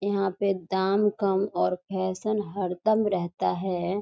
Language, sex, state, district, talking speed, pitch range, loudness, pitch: Hindi, female, Bihar, East Champaran, 150 wpm, 185-200 Hz, -27 LUFS, 195 Hz